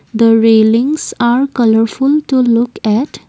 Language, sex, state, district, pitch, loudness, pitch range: English, female, Assam, Kamrup Metropolitan, 235 Hz, -12 LUFS, 225-265 Hz